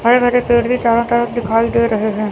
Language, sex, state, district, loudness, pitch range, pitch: Hindi, female, Chandigarh, Chandigarh, -15 LUFS, 230-240 Hz, 235 Hz